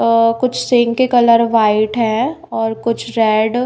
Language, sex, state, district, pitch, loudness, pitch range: Hindi, female, Bihar, Katihar, 230 Hz, -14 LUFS, 225-245 Hz